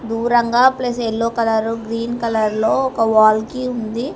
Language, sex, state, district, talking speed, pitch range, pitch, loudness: Telugu, female, Telangana, Hyderabad, 145 wpm, 220-240 Hz, 230 Hz, -17 LUFS